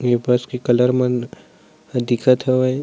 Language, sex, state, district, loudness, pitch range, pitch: Chhattisgarhi, male, Chhattisgarh, Sarguja, -18 LUFS, 120-130 Hz, 125 Hz